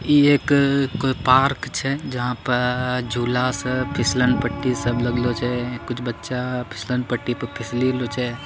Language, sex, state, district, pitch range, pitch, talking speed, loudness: Angika, male, Bihar, Bhagalpur, 120-130 Hz, 125 Hz, 155 wpm, -21 LUFS